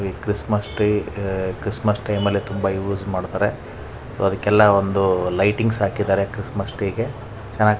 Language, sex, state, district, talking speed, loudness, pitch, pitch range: Kannada, male, Karnataka, Raichur, 100 wpm, -21 LUFS, 100 Hz, 95-105 Hz